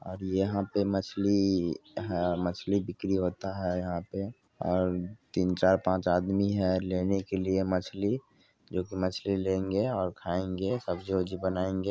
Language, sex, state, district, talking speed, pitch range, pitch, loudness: Maithili, male, Bihar, Supaul, 145 wpm, 90-100 Hz, 95 Hz, -30 LUFS